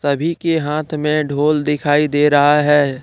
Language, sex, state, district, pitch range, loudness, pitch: Hindi, male, Jharkhand, Deoghar, 145-150 Hz, -16 LUFS, 150 Hz